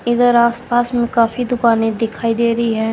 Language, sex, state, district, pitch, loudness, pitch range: Hindi, female, Haryana, Rohtak, 235 Hz, -16 LUFS, 230-240 Hz